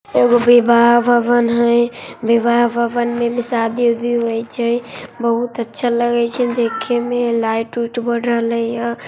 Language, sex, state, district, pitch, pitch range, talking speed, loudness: Maithili, male, Bihar, Samastipur, 235 Hz, 235-240 Hz, 150 wpm, -16 LUFS